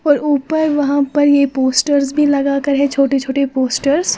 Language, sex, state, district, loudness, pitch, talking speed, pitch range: Hindi, female, Uttar Pradesh, Lalitpur, -15 LUFS, 280 Hz, 185 wpm, 275-290 Hz